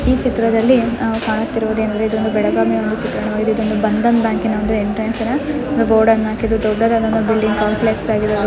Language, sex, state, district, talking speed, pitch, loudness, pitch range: Kannada, female, Karnataka, Belgaum, 150 wpm, 220 Hz, -16 LUFS, 215-230 Hz